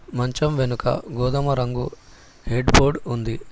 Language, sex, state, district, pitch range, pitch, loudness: Telugu, male, Telangana, Hyderabad, 120-140 Hz, 125 Hz, -22 LUFS